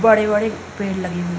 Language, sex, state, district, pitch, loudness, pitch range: Hindi, female, Uttar Pradesh, Hamirpur, 205 Hz, -20 LUFS, 180-215 Hz